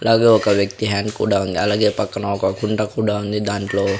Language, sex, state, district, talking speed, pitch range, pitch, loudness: Telugu, male, Andhra Pradesh, Sri Satya Sai, 210 wpm, 100-105 Hz, 105 Hz, -19 LUFS